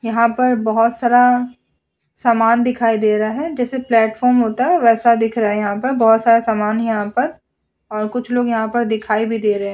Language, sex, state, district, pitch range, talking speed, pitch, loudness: Hindi, female, Uttar Pradesh, Etah, 220-245 Hz, 210 wpm, 230 Hz, -16 LUFS